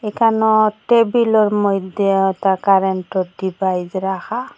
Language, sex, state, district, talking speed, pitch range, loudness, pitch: Bengali, female, Assam, Hailakandi, 105 wpm, 190-220 Hz, -17 LUFS, 200 Hz